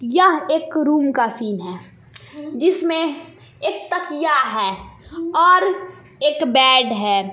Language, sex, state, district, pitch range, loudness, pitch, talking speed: Hindi, female, Jharkhand, Palamu, 260-335 Hz, -17 LUFS, 305 Hz, 115 wpm